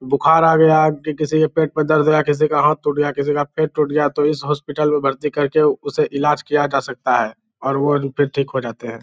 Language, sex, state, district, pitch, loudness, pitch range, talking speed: Hindi, male, Bihar, Lakhisarai, 150 Hz, -17 LUFS, 145-155 Hz, 260 wpm